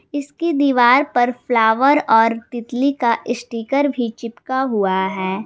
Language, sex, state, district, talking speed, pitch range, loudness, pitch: Hindi, female, Jharkhand, Garhwa, 130 wpm, 230-275 Hz, -17 LUFS, 240 Hz